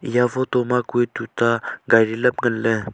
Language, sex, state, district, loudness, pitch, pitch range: Wancho, male, Arunachal Pradesh, Longding, -20 LUFS, 120 Hz, 115-125 Hz